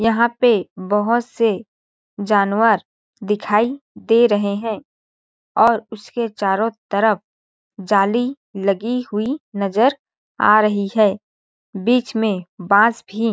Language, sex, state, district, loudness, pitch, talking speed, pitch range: Hindi, female, Chhattisgarh, Balrampur, -18 LUFS, 215 Hz, 115 wpm, 200-230 Hz